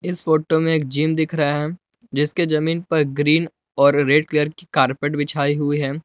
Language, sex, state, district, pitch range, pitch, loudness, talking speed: Hindi, male, Jharkhand, Palamu, 145-160 Hz, 150 Hz, -19 LUFS, 200 wpm